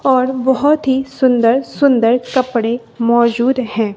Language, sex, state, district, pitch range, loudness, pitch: Hindi, female, Bihar, West Champaran, 235-265 Hz, -14 LUFS, 255 Hz